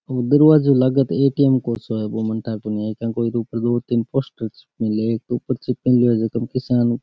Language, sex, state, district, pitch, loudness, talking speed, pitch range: Rajasthani, male, Rajasthan, Nagaur, 120 Hz, -19 LUFS, 280 wpm, 115-130 Hz